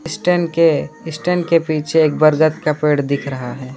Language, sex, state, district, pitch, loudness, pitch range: Hindi, male, West Bengal, Alipurduar, 155 Hz, -16 LUFS, 145-165 Hz